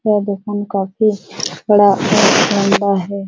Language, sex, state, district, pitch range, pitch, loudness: Hindi, female, Bihar, Supaul, 200-210 Hz, 205 Hz, -15 LUFS